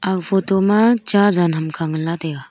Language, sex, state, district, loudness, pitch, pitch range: Wancho, female, Arunachal Pradesh, Longding, -16 LUFS, 185 Hz, 160-200 Hz